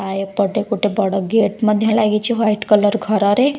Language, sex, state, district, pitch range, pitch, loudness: Odia, female, Odisha, Khordha, 200-220 Hz, 210 Hz, -17 LUFS